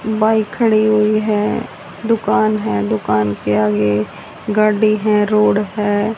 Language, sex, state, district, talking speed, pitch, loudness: Hindi, female, Haryana, Rohtak, 125 wpm, 210 Hz, -16 LUFS